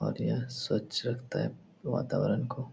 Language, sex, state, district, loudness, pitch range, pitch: Hindi, male, Bihar, Supaul, -33 LUFS, 120-130 Hz, 125 Hz